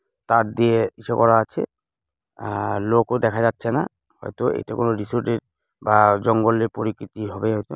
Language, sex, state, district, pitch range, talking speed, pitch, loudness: Bengali, male, West Bengal, Jalpaiguri, 105-115 Hz, 170 wpm, 115 Hz, -21 LUFS